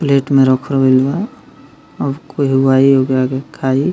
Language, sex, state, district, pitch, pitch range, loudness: Bhojpuri, male, Bihar, Muzaffarpur, 135 Hz, 130-140 Hz, -14 LUFS